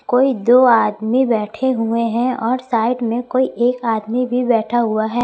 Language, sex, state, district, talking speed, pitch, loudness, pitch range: Hindi, female, Chhattisgarh, Raipur, 185 wpm, 240 Hz, -17 LUFS, 225-250 Hz